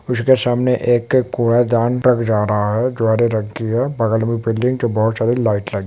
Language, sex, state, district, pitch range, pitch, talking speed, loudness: Hindi, male, West Bengal, Dakshin Dinajpur, 110-125 Hz, 115 Hz, 195 wpm, -17 LUFS